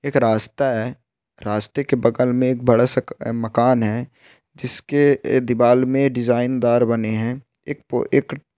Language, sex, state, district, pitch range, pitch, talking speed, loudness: Hindi, male, Rajasthan, Churu, 115-130 Hz, 125 Hz, 155 wpm, -19 LUFS